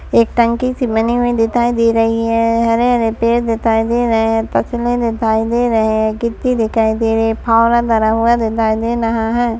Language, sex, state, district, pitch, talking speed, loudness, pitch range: Hindi, female, Maharashtra, Aurangabad, 230 Hz, 205 wpm, -15 LUFS, 225-235 Hz